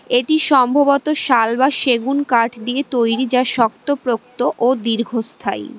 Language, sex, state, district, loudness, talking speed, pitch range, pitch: Bengali, female, West Bengal, Cooch Behar, -17 LUFS, 125 wpm, 235-275 Hz, 250 Hz